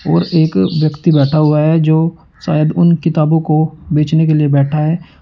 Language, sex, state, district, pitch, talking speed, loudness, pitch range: Hindi, male, Uttar Pradesh, Shamli, 155 Hz, 185 wpm, -13 LUFS, 150-160 Hz